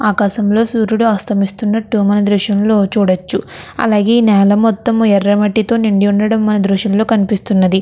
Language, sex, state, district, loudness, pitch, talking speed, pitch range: Telugu, female, Andhra Pradesh, Chittoor, -13 LUFS, 210 Hz, 125 wpm, 200-220 Hz